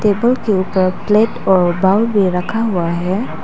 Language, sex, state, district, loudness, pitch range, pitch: Hindi, female, Arunachal Pradesh, Lower Dibang Valley, -15 LUFS, 185-220 Hz, 195 Hz